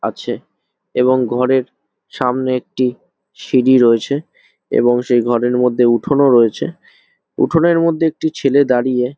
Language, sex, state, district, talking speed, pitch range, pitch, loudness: Bengali, male, West Bengal, Jhargram, 135 wpm, 120-140 Hz, 125 Hz, -15 LUFS